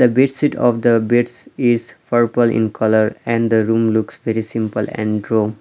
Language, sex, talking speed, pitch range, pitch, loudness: English, male, 180 wpm, 110-120 Hz, 115 Hz, -17 LUFS